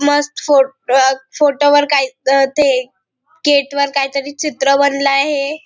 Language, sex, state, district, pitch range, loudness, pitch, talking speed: Marathi, female, Maharashtra, Nagpur, 270-290 Hz, -14 LUFS, 280 Hz, 115 wpm